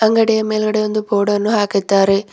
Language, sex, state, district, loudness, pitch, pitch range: Kannada, female, Karnataka, Bidar, -16 LUFS, 210 Hz, 205-215 Hz